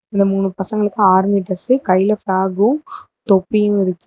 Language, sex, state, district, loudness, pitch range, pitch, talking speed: Tamil, female, Tamil Nadu, Namakkal, -16 LUFS, 190-210 Hz, 200 Hz, 130 wpm